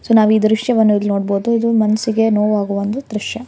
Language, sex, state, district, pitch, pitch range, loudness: Kannada, female, Karnataka, Bellary, 215 Hz, 205-225 Hz, -15 LUFS